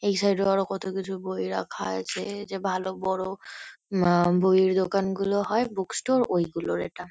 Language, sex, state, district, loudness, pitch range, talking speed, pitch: Bengali, female, West Bengal, Kolkata, -26 LUFS, 185-200 Hz, 175 wpm, 190 Hz